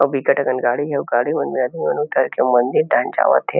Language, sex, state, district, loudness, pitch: Chhattisgarhi, male, Chhattisgarh, Kabirdham, -18 LUFS, 145 Hz